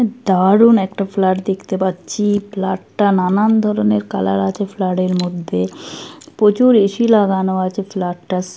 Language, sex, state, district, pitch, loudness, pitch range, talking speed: Bengali, female, West Bengal, Kolkata, 190 Hz, -16 LUFS, 185-210 Hz, 125 wpm